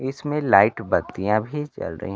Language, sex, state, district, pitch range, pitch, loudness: Hindi, male, Bihar, Kaimur, 105-150 Hz, 130 Hz, -22 LUFS